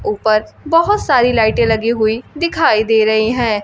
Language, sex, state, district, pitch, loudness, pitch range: Hindi, female, Bihar, Kaimur, 230 Hz, -14 LUFS, 220-305 Hz